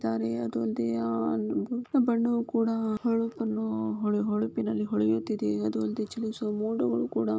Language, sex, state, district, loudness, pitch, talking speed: Kannada, female, Karnataka, Shimoga, -29 LUFS, 115 Hz, 145 wpm